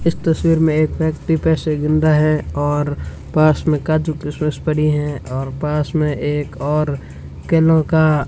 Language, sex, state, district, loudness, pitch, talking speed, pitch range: Hindi, female, Rajasthan, Bikaner, -17 LUFS, 155 Hz, 165 wpm, 145-160 Hz